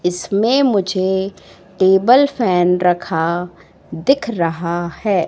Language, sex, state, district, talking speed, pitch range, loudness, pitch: Hindi, female, Madhya Pradesh, Katni, 90 wpm, 175-205 Hz, -16 LUFS, 185 Hz